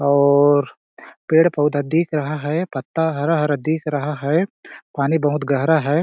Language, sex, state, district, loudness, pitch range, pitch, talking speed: Hindi, male, Chhattisgarh, Balrampur, -19 LUFS, 145-160 Hz, 150 Hz, 160 wpm